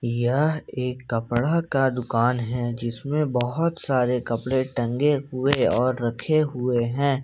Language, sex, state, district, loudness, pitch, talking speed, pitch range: Hindi, male, Jharkhand, Ranchi, -24 LUFS, 125 Hz, 130 wpm, 120-140 Hz